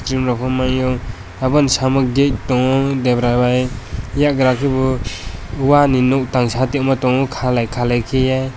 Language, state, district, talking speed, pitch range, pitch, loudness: Kokborok, Tripura, West Tripura, 155 wpm, 125-130 Hz, 130 Hz, -16 LUFS